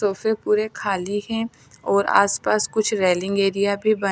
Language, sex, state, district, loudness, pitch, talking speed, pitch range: Hindi, female, Chandigarh, Chandigarh, -21 LUFS, 200 Hz, 175 wpm, 200-215 Hz